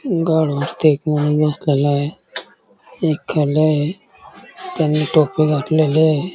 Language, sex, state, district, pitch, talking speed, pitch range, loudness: Marathi, male, Maharashtra, Dhule, 155 Hz, 125 wpm, 150-160 Hz, -17 LUFS